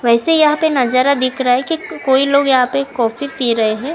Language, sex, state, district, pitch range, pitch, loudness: Hindi, female, Karnataka, Bangalore, 250-280 Hz, 265 Hz, -15 LUFS